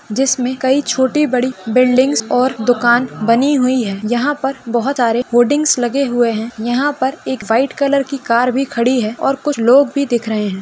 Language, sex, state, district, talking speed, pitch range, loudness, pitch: Hindi, female, Maharashtra, Solapur, 210 wpm, 235-270 Hz, -15 LUFS, 255 Hz